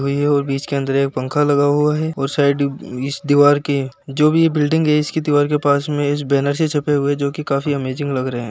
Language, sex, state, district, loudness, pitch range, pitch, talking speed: Hindi, male, Uttar Pradesh, Muzaffarnagar, -17 LUFS, 140-150 Hz, 145 Hz, 230 wpm